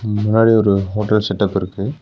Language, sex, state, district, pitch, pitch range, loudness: Tamil, male, Tamil Nadu, Nilgiris, 105 Hz, 100-110 Hz, -16 LUFS